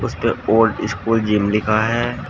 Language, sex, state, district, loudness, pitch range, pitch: Hindi, male, Uttar Pradesh, Shamli, -18 LUFS, 105-115 Hz, 110 Hz